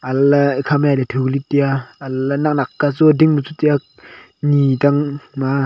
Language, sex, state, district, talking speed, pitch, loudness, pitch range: Wancho, male, Arunachal Pradesh, Longding, 190 wpm, 140 Hz, -16 LUFS, 135-145 Hz